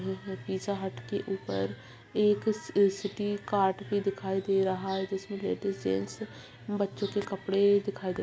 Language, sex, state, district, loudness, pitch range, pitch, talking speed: Hindi, female, Bihar, Purnia, -31 LUFS, 190-200 Hz, 195 Hz, 165 wpm